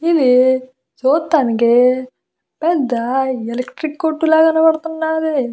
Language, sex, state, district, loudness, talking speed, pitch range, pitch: Telugu, female, Andhra Pradesh, Visakhapatnam, -16 LUFS, 75 wpm, 255-320 Hz, 270 Hz